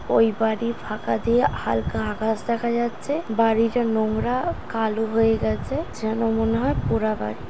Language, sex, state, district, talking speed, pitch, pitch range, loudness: Bengali, female, West Bengal, Dakshin Dinajpur, 160 wpm, 225 Hz, 215-235 Hz, -23 LUFS